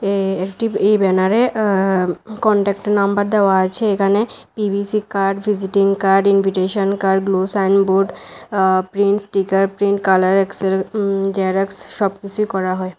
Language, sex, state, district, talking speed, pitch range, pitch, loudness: Bengali, female, Tripura, West Tripura, 135 wpm, 190-205 Hz, 195 Hz, -17 LUFS